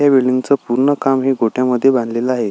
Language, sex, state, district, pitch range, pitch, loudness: Marathi, male, Maharashtra, Solapur, 125-135 Hz, 130 Hz, -15 LUFS